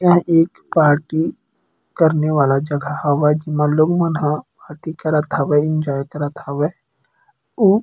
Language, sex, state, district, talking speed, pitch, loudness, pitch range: Chhattisgarhi, male, Chhattisgarh, Kabirdham, 140 wpm, 150 Hz, -18 LUFS, 145-160 Hz